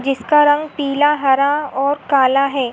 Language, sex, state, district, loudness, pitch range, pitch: Hindi, female, Uttar Pradesh, Hamirpur, -15 LUFS, 270-295 Hz, 280 Hz